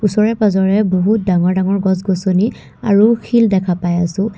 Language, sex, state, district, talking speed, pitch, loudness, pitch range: Assamese, female, Assam, Kamrup Metropolitan, 165 wpm, 195 Hz, -15 LUFS, 185-210 Hz